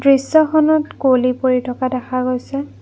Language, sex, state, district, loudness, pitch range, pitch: Assamese, female, Assam, Kamrup Metropolitan, -16 LUFS, 255-285 Hz, 260 Hz